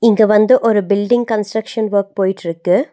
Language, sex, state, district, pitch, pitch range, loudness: Tamil, female, Tamil Nadu, Nilgiris, 215 Hz, 200-225 Hz, -15 LUFS